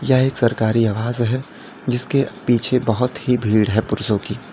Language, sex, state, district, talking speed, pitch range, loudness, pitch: Hindi, male, Uttar Pradesh, Lalitpur, 170 wpm, 110-125 Hz, -19 LUFS, 120 Hz